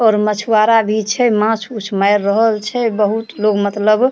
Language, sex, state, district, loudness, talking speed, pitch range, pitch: Maithili, female, Bihar, Supaul, -15 LUFS, 175 wpm, 210-225 Hz, 215 Hz